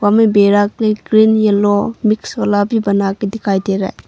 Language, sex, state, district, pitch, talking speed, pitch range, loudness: Hindi, female, Arunachal Pradesh, Longding, 205 Hz, 205 wpm, 200-215 Hz, -14 LUFS